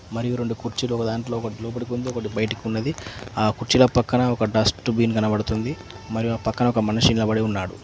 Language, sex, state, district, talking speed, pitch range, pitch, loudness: Telugu, male, Telangana, Mahabubabad, 190 wpm, 110-120 Hz, 115 Hz, -23 LUFS